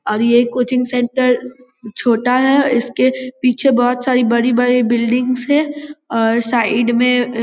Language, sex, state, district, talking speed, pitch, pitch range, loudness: Hindi, female, Bihar, Vaishali, 145 wpm, 245 Hz, 235-255 Hz, -15 LUFS